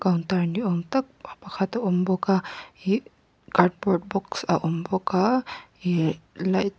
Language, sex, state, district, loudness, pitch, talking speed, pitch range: Mizo, female, Mizoram, Aizawl, -25 LUFS, 185 Hz, 170 wpm, 180-200 Hz